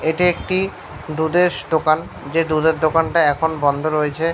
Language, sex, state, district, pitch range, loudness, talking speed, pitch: Bengali, male, West Bengal, Paschim Medinipur, 155-165 Hz, -18 LUFS, 140 wpm, 160 Hz